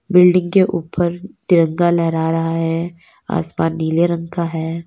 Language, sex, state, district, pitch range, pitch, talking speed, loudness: Hindi, female, Uttar Pradesh, Lalitpur, 165-175 Hz, 170 Hz, 150 wpm, -17 LUFS